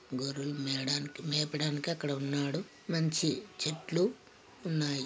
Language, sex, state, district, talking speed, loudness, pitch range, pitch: Telugu, male, Telangana, Nalgonda, 95 wpm, -34 LUFS, 140-160 Hz, 150 Hz